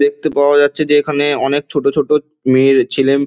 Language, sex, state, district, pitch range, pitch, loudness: Bengali, male, West Bengal, Dakshin Dinajpur, 140-145 Hz, 145 Hz, -14 LUFS